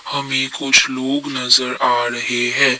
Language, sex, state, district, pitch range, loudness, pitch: Hindi, male, Assam, Kamrup Metropolitan, 125-140 Hz, -16 LUFS, 130 Hz